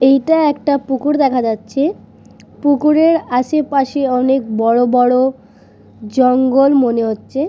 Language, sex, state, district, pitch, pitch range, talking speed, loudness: Bengali, female, West Bengal, Purulia, 265 Hz, 250-285 Hz, 105 wpm, -14 LUFS